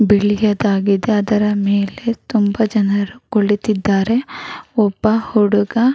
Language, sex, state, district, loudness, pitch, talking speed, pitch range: Kannada, female, Karnataka, Raichur, -16 LUFS, 210 Hz, 90 wpm, 205-220 Hz